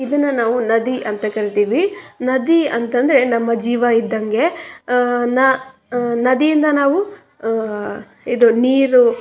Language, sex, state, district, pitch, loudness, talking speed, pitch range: Kannada, female, Karnataka, Raichur, 245 Hz, -16 LUFS, 60 wpm, 230-270 Hz